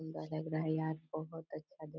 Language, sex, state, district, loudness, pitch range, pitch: Hindi, female, Chhattisgarh, Korba, -40 LUFS, 155-160 Hz, 155 Hz